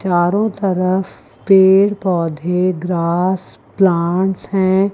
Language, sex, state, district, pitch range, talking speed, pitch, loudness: Hindi, female, Chandigarh, Chandigarh, 175-195 Hz, 85 wpm, 185 Hz, -15 LUFS